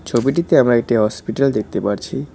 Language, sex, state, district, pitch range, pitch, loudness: Bengali, male, West Bengal, Cooch Behar, 110-140 Hz, 120 Hz, -17 LUFS